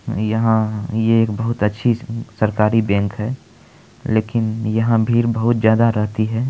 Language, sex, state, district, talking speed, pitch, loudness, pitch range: Maithili, male, Bihar, Supaul, 140 wpm, 110 Hz, -18 LUFS, 110-115 Hz